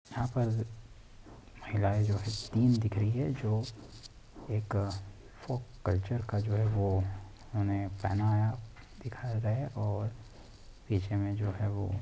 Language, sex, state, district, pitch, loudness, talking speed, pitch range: Hindi, male, Uttar Pradesh, Etah, 105 Hz, -33 LUFS, 130 wpm, 100-115 Hz